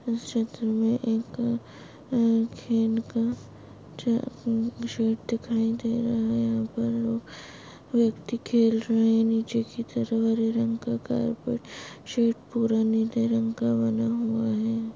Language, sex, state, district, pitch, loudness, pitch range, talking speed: Hindi, female, Maharashtra, Solapur, 230 Hz, -26 LUFS, 225-235 Hz, 130 wpm